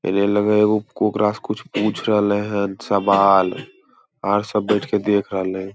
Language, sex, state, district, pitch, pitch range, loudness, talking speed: Hindi, male, Bihar, Lakhisarai, 105 Hz, 100-105 Hz, -19 LUFS, 125 wpm